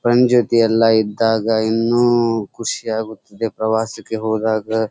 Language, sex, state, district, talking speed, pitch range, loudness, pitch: Kannada, male, Karnataka, Dharwad, 110 wpm, 110-115 Hz, -17 LUFS, 110 Hz